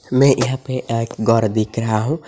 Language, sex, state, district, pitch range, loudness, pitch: Hindi, male, Assam, Hailakandi, 115-130 Hz, -18 LUFS, 115 Hz